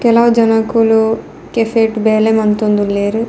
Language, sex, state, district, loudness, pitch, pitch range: Tulu, female, Karnataka, Dakshina Kannada, -13 LUFS, 225 Hz, 215-230 Hz